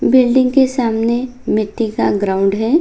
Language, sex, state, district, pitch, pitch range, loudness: Hindi, female, Bihar, Bhagalpur, 235 Hz, 215-255 Hz, -15 LUFS